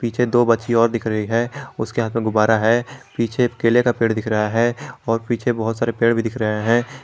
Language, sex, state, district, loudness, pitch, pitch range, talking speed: Hindi, male, Jharkhand, Garhwa, -19 LUFS, 115 Hz, 115-120 Hz, 240 wpm